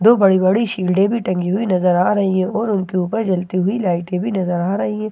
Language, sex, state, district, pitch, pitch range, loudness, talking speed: Hindi, female, Bihar, Katihar, 190 Hz, 180-205 Hz, -17 LUFS, 295 wpm